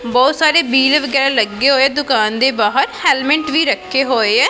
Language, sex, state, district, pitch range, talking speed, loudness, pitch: Punjabi, female, Punjab, Pathankot, 245-295 Hz, 185 wpm, -13 LUFS, 270 Hz